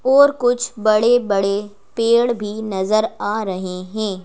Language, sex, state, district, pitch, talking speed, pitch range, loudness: Hindi, female, Madhya Pradesh, Bhopal, 215 Hz, 125 wpm, 200-240 Hz, -18 LUFS